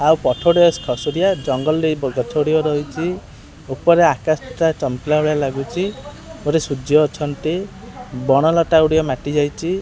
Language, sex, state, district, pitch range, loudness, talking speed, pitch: Odia, male, Odisha, Khordha, 140-165 Hz, -18 LUFS, 135 wpm, 155 Hz